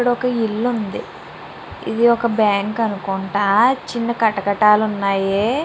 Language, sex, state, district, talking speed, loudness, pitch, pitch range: Telugu, female, Andhra Pradesh, Chittoor, 115 wpm, -18 LUFS, 215 Hz, 200-235 Hz